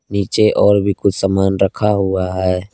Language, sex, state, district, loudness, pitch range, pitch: Hindi, male, Jharkhand, Palamu, -15 LUFS, 95-100 Hz, 95 Hz